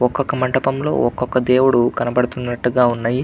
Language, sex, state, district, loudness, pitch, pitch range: Telugu, male, Andhra Pradesh, Anantapur, -18 LUFS, 125 Hz, 120-130 Hz